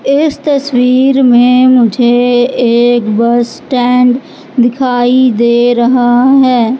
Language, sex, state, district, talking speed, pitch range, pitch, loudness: Hindi, female, Madhya Pradesh, Katni, 95 wpm, 240-255 Hz, 245 Hz, -9 LUFS